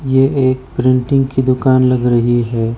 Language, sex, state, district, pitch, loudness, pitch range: Hindi, male, Arunachal Pradesh, Lower Dibang Valley, 130 Hz, -14 LUFS, 125-130 Hz